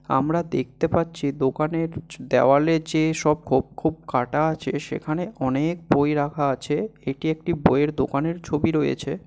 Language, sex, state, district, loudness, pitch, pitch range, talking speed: Bengali, male, West Bengal, Malda, -23 LUFS, 150 Hz, 135-160 Hz, 145 wpm